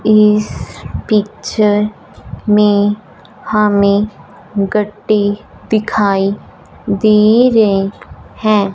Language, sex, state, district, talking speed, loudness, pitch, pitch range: Hindi, female, Punjab, Fazilka, 60 wpm, -13 LUFS, 210 Hz, 200-215 Hz